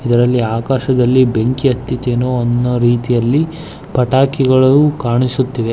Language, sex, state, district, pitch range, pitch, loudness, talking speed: Kannada, male, Karnataka, Dharwad, 120-130 Hz, 125 Hz, -14 LUFS, 85 wpm